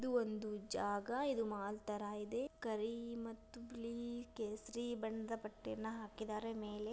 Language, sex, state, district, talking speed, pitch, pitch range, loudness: Kannada, female, Karnataka, Dharwad, 130 wpm, 225 Hz, 215-235 Hz, -44 LUFS